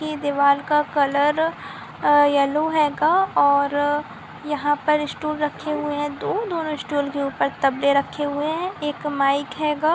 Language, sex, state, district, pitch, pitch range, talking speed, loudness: Hindi, female, Maharashtra, Aurangabad, 295 Hz, 285-305 Hz, 155 wpm, -21 LUFS